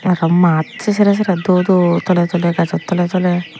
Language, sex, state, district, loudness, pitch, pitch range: Chakma, female, Tripura, Unakoti, -15 LUFS, 180 Hz, 170-185 Hz